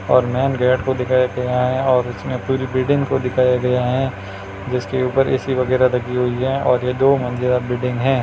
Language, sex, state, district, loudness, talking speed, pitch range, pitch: Hindi, male, Rajasthan, Churu, -18 LUFS, 195 wpm, 125-130 Hz, 125 Hz